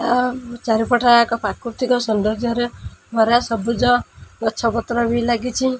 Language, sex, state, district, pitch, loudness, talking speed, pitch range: Odia, female, Odisha, Khordha, 240 Hz, -19 LUFS, 95 wpm, 230-245 Hz